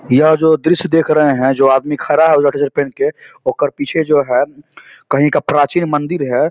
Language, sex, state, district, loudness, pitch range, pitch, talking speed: Hindi, male, Bihar, Samastipur, -14 LUFS, 145-160 Hz, 150 Hz, 205 wpm